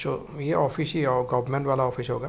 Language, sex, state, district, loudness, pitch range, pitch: Hindi, male, Uttar Pradesh, Hamirpur, -26 LUFS, 125-145 Hz, 135 Hz